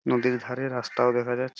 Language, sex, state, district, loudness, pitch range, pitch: Bengali, male, West Bengal, Purulia, -26 LUFS, 125-130 Hz, 125 Hz